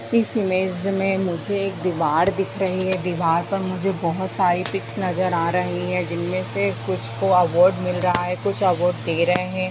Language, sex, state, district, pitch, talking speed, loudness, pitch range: Hindi, female, Bihar, Jamui, 180 Hz, 205 wpm, -22 LUFS, 175-190 Hz